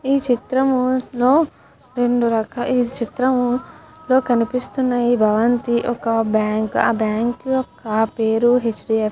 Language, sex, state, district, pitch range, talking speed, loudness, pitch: Telugu, female, Andhra Pradesh, Guntur, 225-260 Hz, 125 wpm, -19 LUFS, 245 Hz